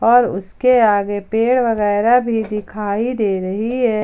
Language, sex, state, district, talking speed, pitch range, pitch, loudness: Hindi, female, Jharkhand, Ranchi, 150 wpm, 205-240 Hz, 220 Hz, -17 LUFS